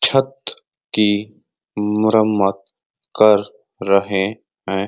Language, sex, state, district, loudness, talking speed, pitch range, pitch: Hindi, male, Uttar Pradesh, Ghazipur, -18 LUFS, 75 wpm, 95-110 Hz, 105 Hz